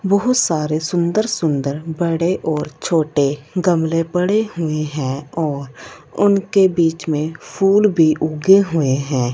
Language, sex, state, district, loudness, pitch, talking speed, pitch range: Hindi, female, Punjab, Fazilka, -17 LUFS, 165 Hz, 120 wpm, 150-190 Hz